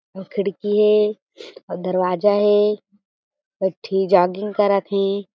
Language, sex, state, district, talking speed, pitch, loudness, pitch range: Chhattisgarhi, female, Chhattisgarh, Jashpur, 125 wpm, 205 Hz, -19 LUFS, 190-210 Hz